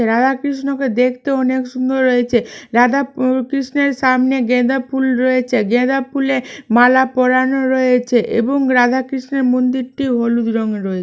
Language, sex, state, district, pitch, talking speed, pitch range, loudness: Bengali, female, West Bengal, Malda, 255 Hz, 140 wpm, 245-265 Hz, -15 LUFS